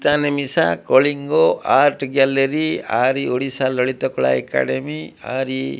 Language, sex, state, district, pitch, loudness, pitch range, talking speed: Odia, male, Odisha, Malkangiri, 130 Hz, -18 LUFS, 85-140 Hz, 135 wpm